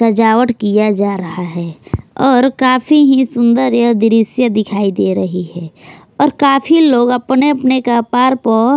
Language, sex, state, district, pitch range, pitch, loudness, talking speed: Hindi, female, Punjab, Pathankot, 205-260 Hz, 235 Hz, -12 LUFS, 150 wpm